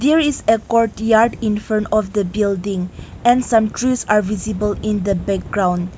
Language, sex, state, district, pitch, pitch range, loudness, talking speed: English, female, Nagaland, Kohima, 215 Hz, 200-225 Hz, -18 LUFS, 170 wpm